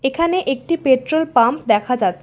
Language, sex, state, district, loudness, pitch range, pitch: Bengali, female, West Bengal, Alipurduar, -17 LUFS, 245-320 Hz, 265 Hz